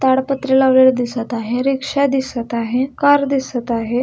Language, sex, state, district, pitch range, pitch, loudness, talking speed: Marathi, female, Maharashtra, Pune, 240-270 Hz, 260 Hz, -17 LUFS, 150 wpm